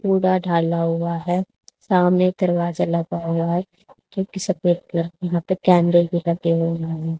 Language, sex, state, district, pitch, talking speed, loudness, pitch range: Hindi, female, Haryana, Charkhi Dadri, 175 Hz, 165 wpm, -20 LUFS, 170-185 Hz